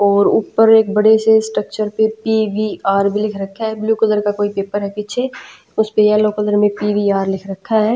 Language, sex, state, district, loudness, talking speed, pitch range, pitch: Hindi, female, Punjab, Pathankot, -16 LUFS, 210 wpm, 205-220 Hz, 210 Hz